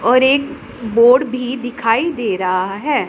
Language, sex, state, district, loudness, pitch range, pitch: Hindi, female, Punjab, Pathankot, -16 LUFS, 225-275 Hz, 250 Hz